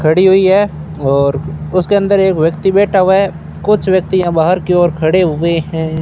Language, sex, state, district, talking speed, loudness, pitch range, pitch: Hindi, male, Rajasthan, Bikaner, 200 wpm, -12 LUFS, 160-190 Hz, 180 Hz